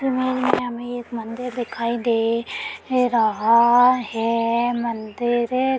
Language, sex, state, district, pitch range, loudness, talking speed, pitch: Hindi, female, Uttar Pradesh, Deoria, 230-250 Hz, -21 LUFS, 95 wpm, 240 Hz